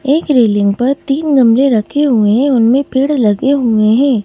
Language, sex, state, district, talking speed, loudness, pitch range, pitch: Hindi, female, Madhya Pradesh, Bhopal, 200 wpm, -11 LUFS, 225-280 Hz, 260 Hz